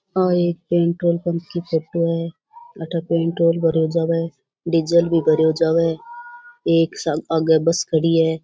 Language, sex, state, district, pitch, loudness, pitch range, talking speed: Rajasthani, female, Rajasthan, Churu, 165 Hz, -19 LUFS, 165-175 Hz, 140 wpm